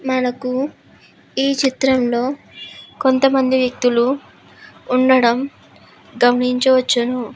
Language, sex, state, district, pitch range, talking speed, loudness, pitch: Telugu, female, Andhra Pradesh, Guntur, 250-265 Hz, 75 wpm, -17 LUFS, 255 Hz